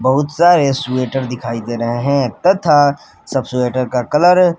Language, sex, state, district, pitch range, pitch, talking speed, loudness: Hindi, male, Jharkhand, Palamu, 125-150 Hz, 135 Hz, 170 wpm, -15 LUFS